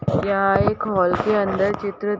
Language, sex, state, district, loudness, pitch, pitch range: Hindi, female, Uttar Pradesh, Hamirpur, -20 LUFS, 200 Hz, 190-205 Hz